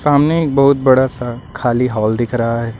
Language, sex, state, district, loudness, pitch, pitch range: Hindi, male, Uttar Pradesh, Lucknow, -15 LUFS, 125 Hz, 115-140 Hz